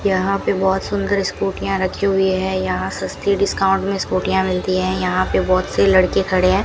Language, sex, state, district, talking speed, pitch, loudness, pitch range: Hindi, female, Rajasthan, Bikaner, 200 wpm, 190 Hz, -18 LUFS, 185-195 Hz